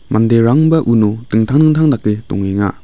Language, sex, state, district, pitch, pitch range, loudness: Garo, male, Meghalaya, West Garo Hills, 115 Hz, 105-145 Hz, -13 LUFS